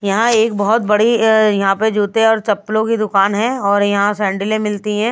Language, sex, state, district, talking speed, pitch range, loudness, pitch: Hindi, female, Bihar, Patna, 210 wpm, 205-225 Hz, -15 LUFS, 210 Hz